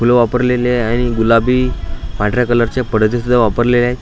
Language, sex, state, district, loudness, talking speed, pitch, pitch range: Marathi, male, Maharashtra, Washim, -14 LUFS, 165 wpm, 120 Hz, 115-125 Hz